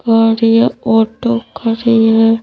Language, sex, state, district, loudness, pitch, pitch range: Hindi, female, Madhya Pradesh, Bhopal, -12 LUFS, 225 Hz, 225-230 Hz